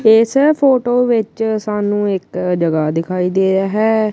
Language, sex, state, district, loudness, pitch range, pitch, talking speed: Punjabi, female, Punjab, Kapurthala, -15 LUFS, 190-225 Hz, 210 Hz, 145 wpm